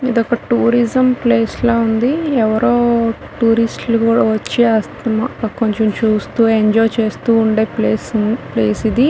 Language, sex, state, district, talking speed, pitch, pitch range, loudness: Telugu, female, Telangana, Nalgonda, 110 wpm, 230 Hz, 220-240 Hz, -15 LUFS